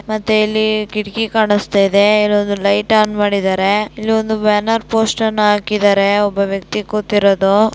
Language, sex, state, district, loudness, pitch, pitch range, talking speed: Kannada, female, Karnataka, Dakshina Kannada, -14 LUFS, 210 Hz, 205-215 Hz, 115 wpm